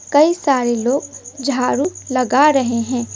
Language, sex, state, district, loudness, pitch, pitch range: Hindi, female, West Bengal, Alipurduar, -17 LUFS, 260 Hz, 250-285 Hz